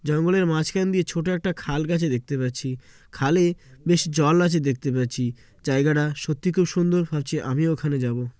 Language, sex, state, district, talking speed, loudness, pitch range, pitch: Bengali, male, West Bengal, Jalpaiguri, 165 wpm, -23 LUFS, 135-175 Hz, 155 Hz